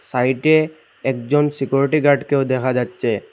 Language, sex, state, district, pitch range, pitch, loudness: Bengali, male, Assam, Hailakandi, 130-145 Hz, 140 Hz, -18 LUFS